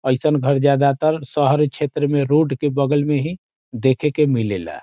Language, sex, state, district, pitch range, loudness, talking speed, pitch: Bhojpuri, male, Bihar, Saran, 135-150 Hz, -18 LUFS, 200 wpm, 145 Hz